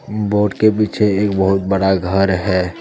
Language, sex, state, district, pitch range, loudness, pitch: Hindi, male, Jharkhand, Deoghar, 95-105 Hz, -16 LUFS, 95 Hz